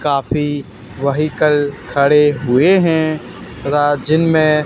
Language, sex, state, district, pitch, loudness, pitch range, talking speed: Hindi, male, Haryana, Charkhi Dadri, 145 Hz, -15 LUFS, 140-155 Hz, 90 wpm